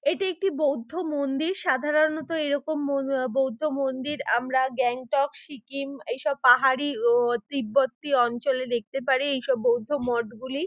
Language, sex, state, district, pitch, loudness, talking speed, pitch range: Bengali, female, West Bengal, Dakshin Dinajpur, 275 Hz, -25 LUFS, 120 wpm, 260-295 Hz